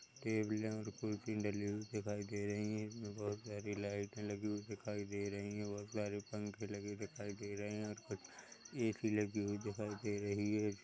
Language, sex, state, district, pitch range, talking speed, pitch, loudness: Hindi, male, Chhattisgarh, Korba, 100-105 Hz, 190 wpm, 105 Hz, -43 LUFS